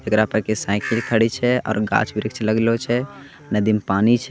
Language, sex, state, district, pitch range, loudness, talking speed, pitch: Angika, male, Bihar, Begusarai, 110-115 Hz, -20 LUFS, 195 wpm, 110 Hz